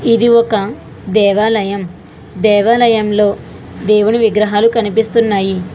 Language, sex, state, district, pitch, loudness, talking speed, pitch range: Telugu, female, Telangana, Hyderabad, 215 Hz, -12 LUFS, 75 wpm, 205-225 Hz